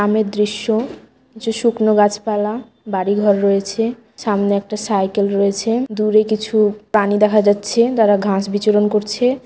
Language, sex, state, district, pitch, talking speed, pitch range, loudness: Bengali, female, West Bengal, Jalpaiguri, 210 Hz, 125 wpm, 205-220 Hz, -17 LUFS